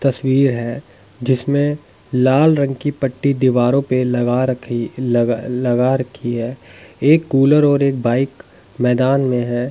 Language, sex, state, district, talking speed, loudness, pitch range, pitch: Hindi, male, Delhi, New Delhi, 140 wpm, -17 LUFS, 120-135 Hz, 130 Hz